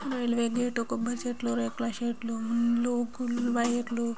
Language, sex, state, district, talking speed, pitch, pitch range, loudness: Telugu, female, Andhra Pradesh, Srikakulam, 130 wpm, 235 Hz, 235-240 Hz, -30 LUFS